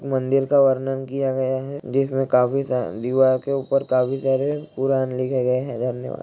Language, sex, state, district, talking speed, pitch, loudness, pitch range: Hindi, male, Bihar, Jahanabad, 190 wpm, 135 Hz, -21 LUFS, 130-135 Hz